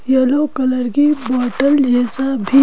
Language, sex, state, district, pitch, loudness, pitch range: Hindi, female, Madhya Pradesh, Bhopal, 265 Hz, -15 LUFS, 255-280 Hz